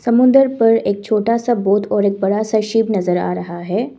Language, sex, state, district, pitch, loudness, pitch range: Hindi, female, Assam, Kamrup Metropolitan, 215 Hz, -16 LUFS, 200-235 Hz